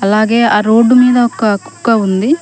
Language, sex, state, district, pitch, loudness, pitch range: Telugu, female, Telangana, Mahabubabad, 230 Hz, -11 LUFS, 210-240 Hz